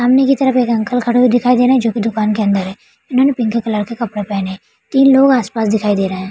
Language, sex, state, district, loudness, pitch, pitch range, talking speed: Hindi, female, Bihar, Araria, -14 LUFS, 230 Hz, 210-250 Hz, 295 wpm